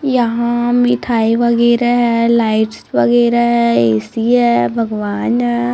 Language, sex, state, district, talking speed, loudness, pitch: Hindi, female, Chhattisgarh, Raipur, 105 wpm, -14 LUFS, 235 Hz